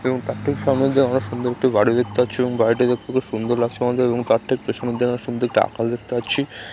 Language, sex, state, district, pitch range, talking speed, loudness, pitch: Bengali, male, West Bengal, Dakshin Dinajpur, 115-130 Hz, 270 wpm, -20 LUFS, 125 Hz